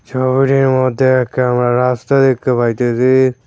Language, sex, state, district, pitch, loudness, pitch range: Bengali, male, West Bengal, Cooch Behar, 130 Hz, -13 LUFS, 125-130 Hz